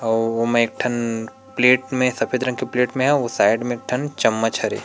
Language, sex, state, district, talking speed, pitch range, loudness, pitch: Chhattisgarhi, male, Chhattisgarh, Rajnandgaon, 220 wpm, 115-130 Hz, -20 LUFS, 125 Hz